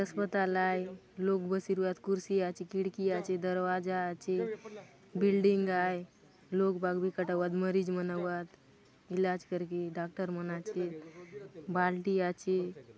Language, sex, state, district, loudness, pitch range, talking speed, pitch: Halbi, female, Chhattisgarh, Bastar, -33 LUFS, 180-190 Hz, 135 wpm, 185 Hz